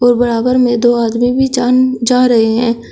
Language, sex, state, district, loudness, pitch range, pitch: Hindi, male, Uttar Pradesh, Shamli, -12 LUFS, 235-250 Hz, 245 Hz